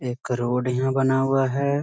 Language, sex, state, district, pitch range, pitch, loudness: Hindi, male, Bihar, Muzaffarpur, 125-135 Hz, 130 Hz, -23 LUFS